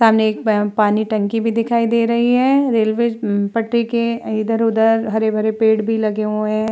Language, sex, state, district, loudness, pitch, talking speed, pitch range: Hindi, female, Uttar Pradesh, Muzaffarnagar, -17 LUFS, 225 Hz, 180 wpm, 215-230 Hz